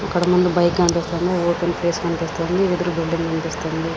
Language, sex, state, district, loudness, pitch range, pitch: Telugu, female, Andhra Pradesh, Srikakulam, -20 LUFS, 165-175 Hz, 170 Hz